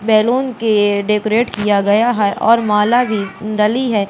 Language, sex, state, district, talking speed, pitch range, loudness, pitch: Hindi, female, Madhya Pradesh, Katni, 160 wpm, 205-230 Hz, -15 LUFS, 215 Hz